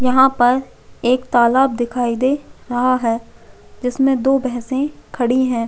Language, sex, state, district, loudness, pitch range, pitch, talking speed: Hindi, female, Chhattisgarh, Jashpur, -17 LUFS, 240-265 Hz, 255 Hz, 135 wpm